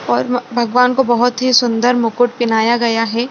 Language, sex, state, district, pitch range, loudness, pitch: Hindi, female, Bihar, Saran, 235-245 Hz, -14 LUFS, 240 Hz